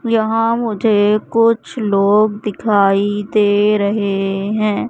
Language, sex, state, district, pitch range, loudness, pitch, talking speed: Hindi, female, Madhya Pradesh, Katni, 205-220 Hz, -15 LUFS, 210 Hz, 100 wpm